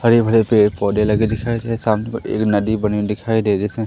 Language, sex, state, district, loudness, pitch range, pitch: Hindi, male, Madhya Pradesh, Umaria, -17 LUFS, 105-115 Hz, 110 Hz